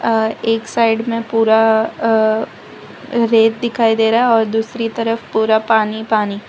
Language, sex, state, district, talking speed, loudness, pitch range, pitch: Hindi, female, Gujarat, Valsad, 155 wpm, -15 LUFS, 220-230 Hz, 225 Hz